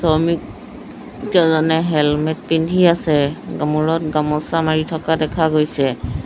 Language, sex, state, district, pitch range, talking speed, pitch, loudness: Assamese, female, Assam, Sonitpur, 150-165 Hz, 105 wpm, 155 Hz, -17 LUFS